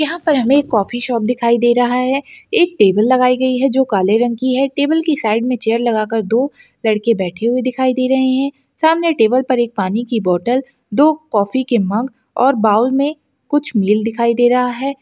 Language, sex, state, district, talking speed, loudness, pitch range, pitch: Hindi, female, Uttarakhand, Tehri Garhwal, 215 wpm, -15 LUFS, 225-270 Hz, 250 Hz